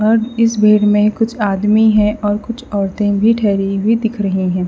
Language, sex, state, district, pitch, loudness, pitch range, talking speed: Hindi, female, Haryana, Rohtak, 210 Hz, -14 LUFS, 200-225 Hz, 205 wpm